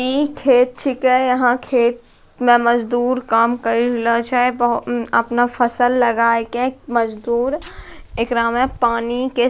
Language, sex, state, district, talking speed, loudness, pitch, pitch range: Angika, female, Bihar, Bhagalpur, 145 wpm, -17 LUFS, 245 Hz, 235-255 Hz